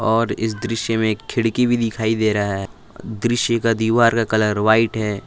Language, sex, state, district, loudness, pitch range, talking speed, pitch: Hindi, male, Jharkhand, Palamu, -19 LUFS, 110-115 Hz, 205 wpm, 110 Hz